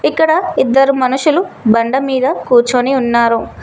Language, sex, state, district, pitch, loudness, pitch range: Telugu, female, Telangana, Mahabubabad, 260 Hz, -13 LUFS, 240-275 Hz